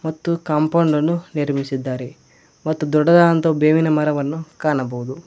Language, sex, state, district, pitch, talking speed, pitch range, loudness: Kannada, male, Karnataka, Koppal, 155 Hz, 90 wpm, 145-165 Hz, -18 LUFS